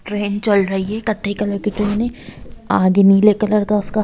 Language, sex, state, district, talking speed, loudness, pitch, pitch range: Hindi, female, Bihar, Gopalganj, 225 wpm, -17 LUFS, 205 Hz, 200-210 Hz